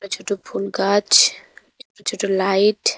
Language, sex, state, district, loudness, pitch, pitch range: Bengali, female, West Bengal, Cooch Behar, -18 LUFS, 200 Hz, 195-205 Hz